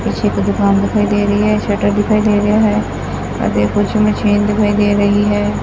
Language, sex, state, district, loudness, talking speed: Punjabi, female, Punjab, Fazilka, -14 LUFS, 200 wpm